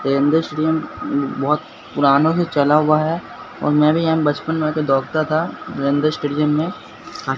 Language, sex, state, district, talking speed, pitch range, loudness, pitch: Hindi, male, Bihar, Katihar, 170 wpm, 145-160 Hz, -18 LUFS, 155 Hz